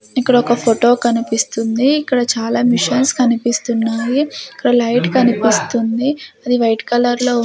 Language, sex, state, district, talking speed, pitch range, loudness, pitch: Telugu, female, Andhra Pradesh, Sri Satya Sai, 130 wpm, 230-250 Hz, -15 LUFS, 240 Hz